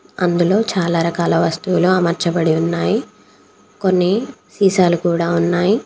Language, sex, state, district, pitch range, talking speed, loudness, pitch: Telugu, female, Telangana, Komaram Bheem, 170-190 Hz, 100 wpm, -17 LUFS, 180 Hz